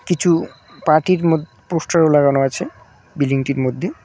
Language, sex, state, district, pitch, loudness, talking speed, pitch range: Bengali, male, West Bengal, Cooch Behar, 155 Hz, -17 LUFS, 120 wpm, 135-170 Hz